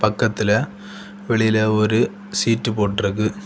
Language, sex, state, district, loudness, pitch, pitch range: Tamil, male, Tamil Nadu, Kanyakumari, -20 LUFS, 110 Hz, 105-145 Hz